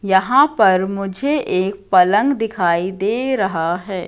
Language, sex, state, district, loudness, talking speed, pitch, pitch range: Hindi, female, Madhya Pradesh, Katni, -17 LUFS, 130 wpm, 195 Hz, 185-230 Hz